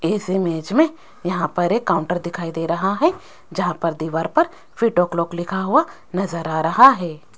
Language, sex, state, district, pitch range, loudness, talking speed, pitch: Hindi, female, Rajasthan, Jaipur, 165-220 Hz, -20 LUFS, 195 wpm, 175 Hz